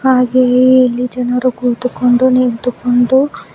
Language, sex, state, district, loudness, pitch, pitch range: Kannada, female, Karnataka, Bangalore, -12 LUFS, 250 Hz, 245-255 Hz